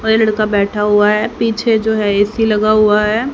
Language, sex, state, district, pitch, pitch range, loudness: Hindi, female, Haryana, Jhajjar, 215 Hz, 210-220 Hz, -13 LUFS